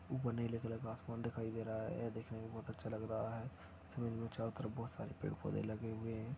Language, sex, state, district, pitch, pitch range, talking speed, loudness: Hindi, male, Chhattisgarh, Bastar, 115 Hz, 110-115 Hz, 265 wpm, -44 LUFS